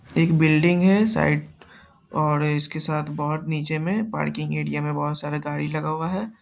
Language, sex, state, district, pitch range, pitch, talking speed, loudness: Hindi, male, Bihar, Saharsa, 145-160 Hz, 150 Hz, 175 wpm, -23 LUFS